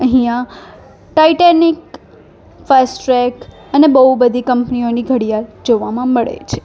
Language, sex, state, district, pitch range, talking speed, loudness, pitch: Gujarati, female, Gujarat, Valsad, 245-270 Hz, 110 wpm, -13 LUFS, 255 Hz